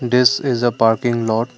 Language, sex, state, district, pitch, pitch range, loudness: English, male, Assam, Kamrup Metropolitan, 120 Hz, 115-125 Hz, -17 LUFS